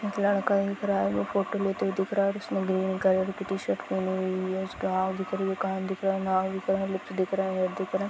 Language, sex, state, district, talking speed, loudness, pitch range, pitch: Hindi, female, Jharkhand, Sahebganj, 320 wpm, -28 LUFS, 190-195 Hz, 190 Hz